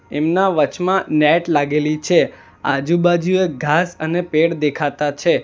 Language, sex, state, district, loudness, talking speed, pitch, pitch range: Gujarati, male, Gujarat, Valsad, -17 LUFS, 120 wpm, 160 Hz, 150-175 Hz